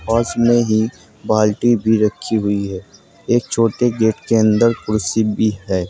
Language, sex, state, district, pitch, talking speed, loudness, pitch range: Hindi, male, Uttar Pradesh, Saharanpur, 110 Hz, 165 wpm, -17 LUFS, 105-115 Hz